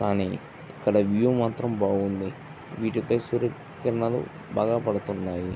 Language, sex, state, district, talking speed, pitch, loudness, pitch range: Telugu, male, Andhra Pradesh, Visakhapatnam, 110 wpm, 110 Hz, -27 LUFS, 100-120 Hz